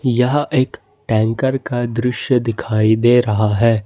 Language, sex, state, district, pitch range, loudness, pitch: Hindi, male, Jharkhand, Ranchi, 110-125 Hz, -17 LUFS, 120 Hz